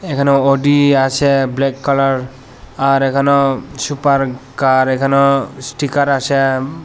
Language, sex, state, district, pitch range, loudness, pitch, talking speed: Bengali, male, Tripura, Unakoti, 135-140 Hz, -14 LUFS, 135 Hz, 115 wpm